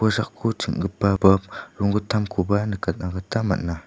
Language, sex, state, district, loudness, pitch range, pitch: Garo, male, Meghalaya, West Garo Hills, -23 LUFS, 95-110 Hz, 100 Hz